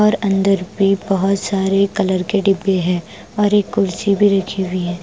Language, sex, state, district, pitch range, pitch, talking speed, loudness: Hindi, female, Punjab, Pathankot, 190-200 Hz, 195 Hz, 205 wpm, -17 LUFS